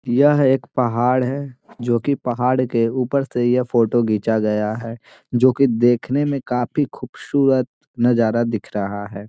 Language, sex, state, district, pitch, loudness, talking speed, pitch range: Hindi, male, Bihar, Gaya, 125 Hz, -19 LUFS, 160 wpm, 115-130 Hz